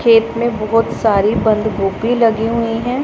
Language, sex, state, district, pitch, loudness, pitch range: Hindi, female, Punjab, Pathankot, 225 Hz, -15 LUFS, 215-230 Hz